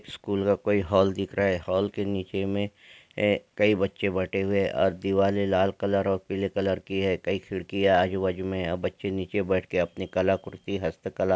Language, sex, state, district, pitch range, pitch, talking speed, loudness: Hindi, male, Bihar, Gopalganj, 95-100 Hz, 95 Hz, 190 wpm, -27 LUFS